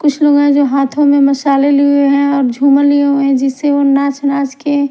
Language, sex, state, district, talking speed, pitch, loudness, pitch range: Hindi, female, Bihar, Patna, 210 wpm, 280 Hz, -11 LUFS, 275-285 Hz